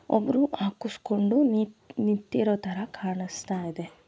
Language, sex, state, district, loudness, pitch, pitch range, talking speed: Kannada, female, Karnataka, Dharwad, -28 LUFS, 210 Hz, 190-225 Hz, 75 wpm